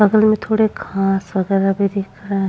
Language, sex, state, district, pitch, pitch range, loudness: Hindi, female, Uttar Pradesh, Muzaffarnagar, 200 Hz, 195-210 Hz, -18 LUFS